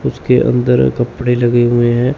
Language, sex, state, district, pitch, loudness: Hindi, male, Chandigarh, Chandigarh, 120 Hz, -13 LUFS